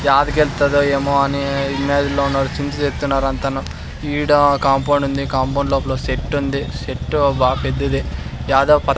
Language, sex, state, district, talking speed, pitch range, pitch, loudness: Telugu, male, Andhra Pradesh, Sri Satya Sai, 125 wpm, 135-145 Hz, 140 Hz, -18 LUFS